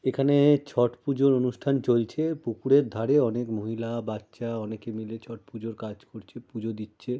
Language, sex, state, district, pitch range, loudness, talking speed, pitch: Bengali, male, West Bengal, Jalpaiguri, 115-135 Hz, -26 LUFS, 150 wpm, 120 Hz